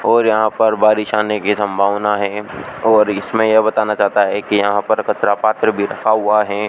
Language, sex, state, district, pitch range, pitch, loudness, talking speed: Hindi, male, Rajasthan, Bikaner, 100-110 Hz, 105 Hz, -15 LUFS, 205 wpm